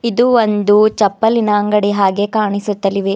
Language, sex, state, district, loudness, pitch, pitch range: Kannada, female, Karnataka, Bidar, -14 LUFS, 210 Hz, 200-220 Hz